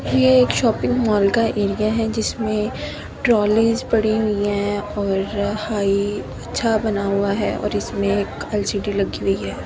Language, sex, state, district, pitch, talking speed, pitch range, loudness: Hindi, female, Delhi, New Delhi, 205 Hz, 155 wpm, 195-215 Hz, -20 LUFS